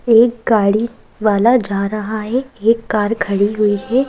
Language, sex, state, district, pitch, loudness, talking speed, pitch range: Hindi, female, Madhya Pradesh, Bhopal, 220 Hz, -16 LUFS, 160 wpm, 205-235 Hz